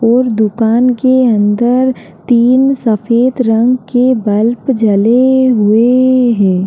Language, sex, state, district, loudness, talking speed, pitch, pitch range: Hindi, female, Uttar Pradesh, Jalaun, -10 LUFS, 110 wpm, 240 Hz, 225-255 Hz